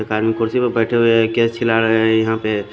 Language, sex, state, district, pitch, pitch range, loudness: Hindi, male, Odisha, Khordha, 115 Hz, 110-115 Hz, -16 LUFS